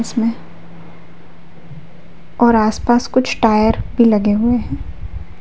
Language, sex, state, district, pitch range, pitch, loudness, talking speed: Hindi, female, Madhya Pradesh, Umaria, 165-230 Hz, 210 Hz, -15 LUFS, 100 wpm